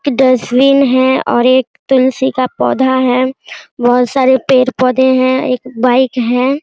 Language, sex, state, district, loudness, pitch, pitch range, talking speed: Hindi, female, Bihar, Araria, -12 LUFS, 260 Hz, 255-265 Hz, 145 wpm